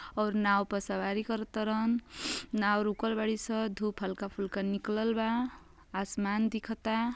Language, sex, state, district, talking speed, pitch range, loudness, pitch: Bhojpuri, female, Uttar Pradesh, Ghazipur, 135 wpm, 200-225 Hz, -32 LUFS, 215 Hz